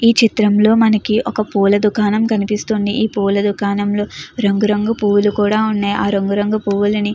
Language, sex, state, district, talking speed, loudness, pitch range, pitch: Telugu, female, Andhra Pradesh, Chittoor, 145 wpm, -15 LUFS, 205-215 Hz, 210 Hz